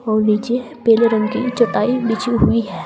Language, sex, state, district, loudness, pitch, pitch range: Hindi, female, Uttar Pradesh, Saharanpur, -17 LUFS, 230 Hz, 215-245 Hz